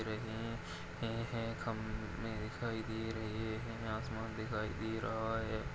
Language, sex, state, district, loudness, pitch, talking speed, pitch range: Hindi, male, Maharashtra, Nagpur, -41 LUFS, 110 Hz, 135 wpm, 110-115 Hz